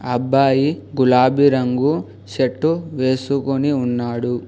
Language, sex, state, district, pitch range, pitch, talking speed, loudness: Telugu, male, Telangana, Hyderabad, 125-140 Hz, 130 Hz, 80 wpm, -18 LUFS